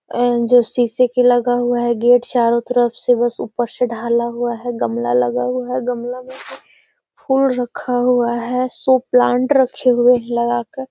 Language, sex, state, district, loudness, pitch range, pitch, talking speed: Hindi, female, Bihar, Gaya, -17 LUFS, 235-250 Hz, 245 Hz, 185 wpm